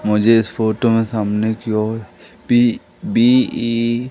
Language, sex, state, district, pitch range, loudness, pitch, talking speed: Hindi, male, Madhya Pradesh, Katni, 110-120 Hz, -17 LUFS, 115 Hz, 115 wpm